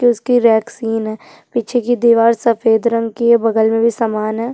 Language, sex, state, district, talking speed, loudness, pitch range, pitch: Hindi, female, Chhattisgarh, Jashpur, 185 wpm, -15 LUFS, 225-235 Hz, 230 Hz